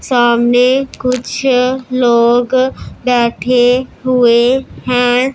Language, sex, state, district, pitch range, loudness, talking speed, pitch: Hindi, female, Punjab, Pathankot, 245-255 Hz, -12 LUFS, 65 wpm, 250 Hz